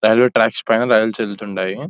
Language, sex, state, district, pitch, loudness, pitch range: Telugu, male, Telangana, Nalgonda, 110 Hz, -17 LUFS, 95-110 Hz